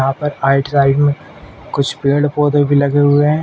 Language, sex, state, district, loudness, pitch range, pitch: Hindi, male, Uttar Pradesh, Ghazipur, -14 LUFS, 140-145 Hz, 145 Hz